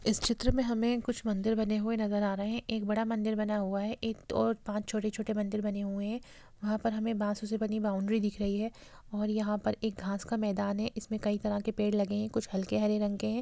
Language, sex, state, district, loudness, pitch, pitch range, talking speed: Hindi, female, Bihar, Sitamarhi, -32 LUFS, 215 Hz, 210-225 Hz, 255 wpm